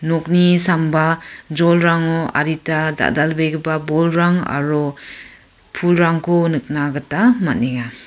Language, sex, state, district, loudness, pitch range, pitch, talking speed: Garo, female, Meghalaya, West Garo Hills, -16 LUFS, 150-170 Hz, 160 Hz, 80 wpm